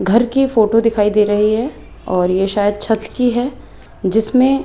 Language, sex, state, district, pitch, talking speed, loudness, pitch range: Hindi, female, Rajasthan, Jaipur, 220 Hz, 180 wpm, -16 LUFS, 205-245 Hz